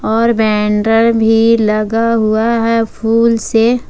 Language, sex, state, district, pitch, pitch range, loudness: Hindi, female, Jharkhand, Ranchi, 225 Hz, 220-230 Hz, -12 LUFS